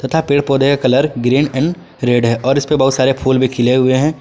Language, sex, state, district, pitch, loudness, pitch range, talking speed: Hindi, male, Jharkhand, Ranchi, 135 Hz, -14 LUFS, 130-145 Hz, 255 wpm